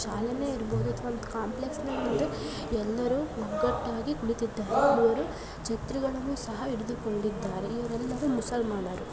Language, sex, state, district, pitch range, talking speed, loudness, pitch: Kannada, female, Karnataka, Bellary, 215-250 Hz, 85 wpm, -31 LUFS, 230 Hz